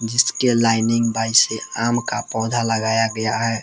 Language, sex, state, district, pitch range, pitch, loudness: Hindi, male, Jharkhand, Palamu, 115-120 Hz, 115 Hz, -19 LUFS